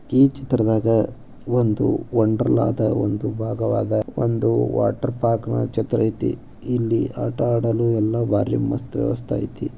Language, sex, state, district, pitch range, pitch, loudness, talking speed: Kannada, male, Karnataka, Bijapur, 110-120 Hz, 115 Hz, -21 LUFS, 105 wpm